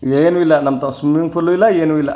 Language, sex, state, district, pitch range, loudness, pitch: Kannada, male, Karnataka, Chamarajanagar, 140-165 Hz, -14 LUFS, 155 Hz